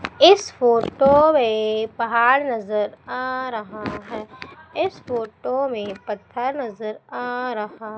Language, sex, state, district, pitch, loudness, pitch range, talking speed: Hindi, female, Madhya Pradesh, Umaria, 235 Hz, -21 LUFS, 215-260 Hz, 115 wpm